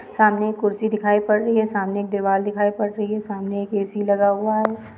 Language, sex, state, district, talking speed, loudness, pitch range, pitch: Hindi, female, Andhra Pradesh, Krishna, 240 wpm, -21 LUFS, 200-215 Hz, 210 Hz